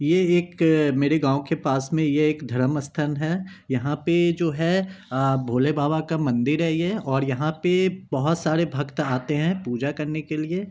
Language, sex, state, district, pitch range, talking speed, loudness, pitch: Hindi, male, Bihar, Samastipur, 140-170 Hz, 185 wpm, -23 LUFS, 155 Hz